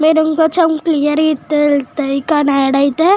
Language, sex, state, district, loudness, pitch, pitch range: Telugu, female, Telangana, Nalgonda, -14 LUFS, 300 Hz, 285-315 Hz